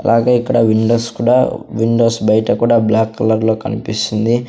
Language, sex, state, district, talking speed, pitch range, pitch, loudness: Telugu, male, Andhra Pradesh, Sri Satya Sai, 135 wpm, 110-115 Hz, 115 Hz, -14 LUFS